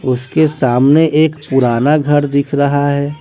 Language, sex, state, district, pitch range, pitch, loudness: Hindi, male, Bihar, West Champaran, 135-150 Hz, 145 Hz, -13 LUFS